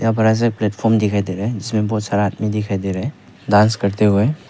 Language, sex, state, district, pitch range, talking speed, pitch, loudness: Hindi, male, Arunachal Pradesh, Papum Pare, 100-110 Hz, 240 wpm, 105 Hz, -18 LUFS